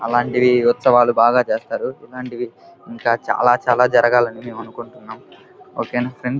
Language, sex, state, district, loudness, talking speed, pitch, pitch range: Telugu, male, Andhra Pradesh, Krishna, -17 LUFS, 120 wpm, 120 Hz, 120-125 Hz